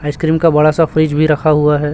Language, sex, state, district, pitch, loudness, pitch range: Hindi, male, Chhattisgarh, Raipur, 155 Hz, -12 LUFS, 150-160 Hz